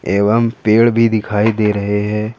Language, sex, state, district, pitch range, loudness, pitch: Hindi, male, Jharkhand, Ranchi, 105-115 Hz, -14 LUFS, 105 Hz